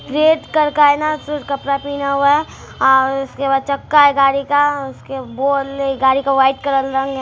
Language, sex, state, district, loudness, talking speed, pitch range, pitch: Hindi, female, Bihar, Araria, -15 LUFS, 205 wpm, 270-290 Hz, 275 Hz